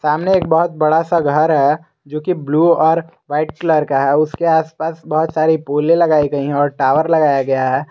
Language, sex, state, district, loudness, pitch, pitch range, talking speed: Hindi, male, Jharkhand, Garhwa, -15 LUFS, 155 Hz, 145-165 Hz, 195 wpm